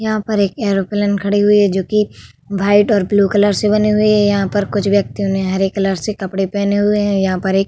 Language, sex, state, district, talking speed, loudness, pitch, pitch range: Hindi, female, Uttar Pradesh, Hamirpur, 260 wpm, -15 LUFS, 200 Hz, 195-205 Hz